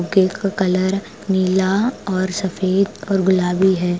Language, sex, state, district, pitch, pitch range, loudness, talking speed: Hindi, female, Punjab, Pathankot, 190 Hz, 185-195 Hz, -18 LUFS, 135 wpm